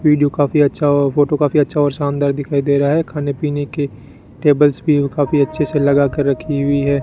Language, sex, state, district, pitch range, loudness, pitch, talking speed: Hindi, male, Rajasthan, Bikaner, 140-150 Hz, -16 LUFS, 145 Hz, 220 wpm